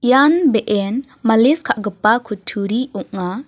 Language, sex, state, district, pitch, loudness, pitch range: Garo, female, Meghalaya, West Garo Hills, 230 Hz, -17 LUFS, 210-260 Hz